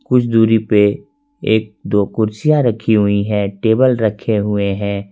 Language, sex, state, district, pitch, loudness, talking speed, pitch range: Hindi, male, Jharkhand, Ranchi, 110 Hz, -15 LUFS, 150 wpm, 100-115 Hz